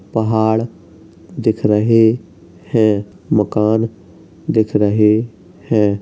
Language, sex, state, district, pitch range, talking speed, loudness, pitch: Hindi, male, Uttar Pradesh, Hamirpur, 105-115 Hz, 80 wpm, -16 LUFS, 110 Hz